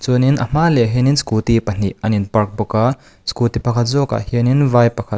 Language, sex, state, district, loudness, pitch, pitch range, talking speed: Mizo, male, Mizoram, Aizawl, -16 LUFS, 120 Hz, 110-125 Hz, 230 wpm